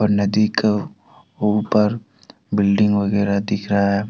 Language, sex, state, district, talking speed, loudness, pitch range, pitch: Hindi, male, Jharkhand, Deoghar, 145 wpm, -19 LUFS, 100-105 Hz, 105 Hz